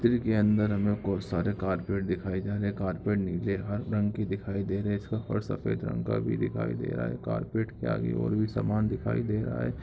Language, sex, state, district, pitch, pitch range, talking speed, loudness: Hindi, male, Bihar, Samastipur, 100 Hz, 95-105 Hz, 230 wpm, -30 LUFS